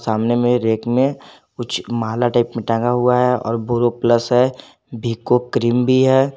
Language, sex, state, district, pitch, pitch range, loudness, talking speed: Hindi, male, Jharkhand, Garhwa, 120 Hz, 115-125 Hz, -17 LUFS, 180 wpm